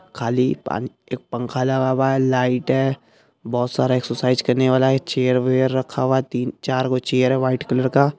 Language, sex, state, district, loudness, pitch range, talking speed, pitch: Hindi, male, Bihar, Araria, -20 LUFS, 125-130 Hz, 205 wpm, 130 Hz